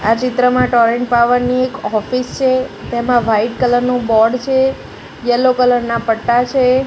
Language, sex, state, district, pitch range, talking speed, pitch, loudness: Gujarati, female, Gujarat, Gandhinagar, 235-255 Hz, 165 wpm, 245 Hz, -14 LUFS